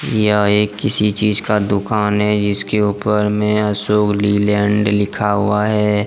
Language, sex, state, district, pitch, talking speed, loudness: Hindi, male, Jharkhand, Deoghar, 105 Hz, 150 wpm, -16 LUFS